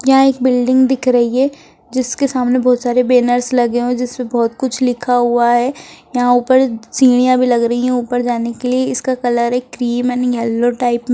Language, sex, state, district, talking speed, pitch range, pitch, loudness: Hindi, female, Bihar, Begusarai, 215 wpm, 240-255 Hz, 245 Hz, -15 LUFS